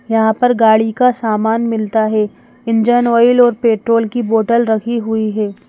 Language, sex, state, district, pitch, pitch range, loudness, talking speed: Hindi, female, Madhya Pradesh, Bhopal, 225 Hz, 220-235 Hz, -14 LUFS, 170 wpm